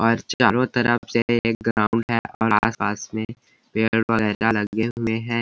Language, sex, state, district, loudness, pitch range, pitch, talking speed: Hindi, male, Chhattisgarh, Bilaspur, -22 LUFS, 110-115 Hz, 115 Hz, 145 wpm